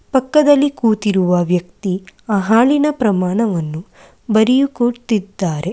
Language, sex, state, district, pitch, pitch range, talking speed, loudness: Kannada, female, Karnataka, Mysore, 215 Hz, 185-250 Hz, 75 wpm, -16 LUFS